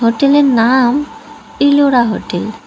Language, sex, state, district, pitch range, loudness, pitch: Bengali, female, West Bengal, Cooch Behar, 230-285 Hz, -12 LUFS, 260 Hz